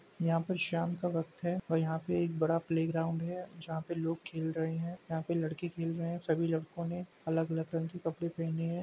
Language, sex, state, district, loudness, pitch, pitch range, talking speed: Hindi, male, Uttar Pradesh, Jalaun, -35 LUFS, 165 Hz, 165-170 Hz, 235 wpm